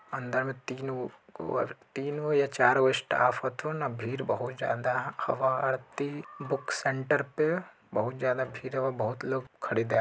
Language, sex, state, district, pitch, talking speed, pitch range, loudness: Bajjika, male, Bihar, Vaishali, 130 Hz, 170 wpm, 125-140 Hz, -30 LUFS